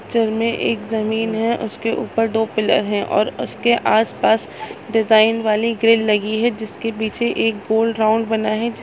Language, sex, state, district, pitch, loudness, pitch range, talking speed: Hindi, female, Chhattisgarh, Raigarh, 225 Hz, -18 LUFS, 220-230 Hz, 175 wpm